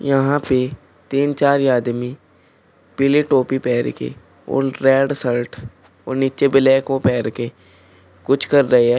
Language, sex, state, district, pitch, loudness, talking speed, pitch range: Hindi, male, Uttar Pradesh, Shamli, 130 Hz, -18 LUFS, 145 wpm, 120-135 Hz